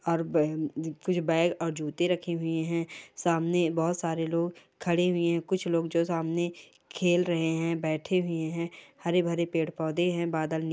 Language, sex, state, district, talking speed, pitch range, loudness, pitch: Hindi, female, Chhattisgarh, Kabirdham, 185 wpm, 165-175 Hz, -29 LUFS, 170 Hz